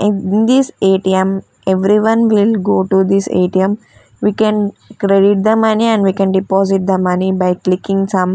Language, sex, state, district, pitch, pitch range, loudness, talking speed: English, female, Punjab, Fazilka, 195 Hz, 190-210 Hz, -13 LUFS, 165 wpm